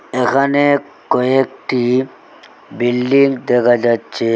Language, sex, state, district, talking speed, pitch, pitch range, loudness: Bengali, male, Assam, Hailakandi, 70 wpm, 125 Hz, 120-135 Hz, -15 LUFS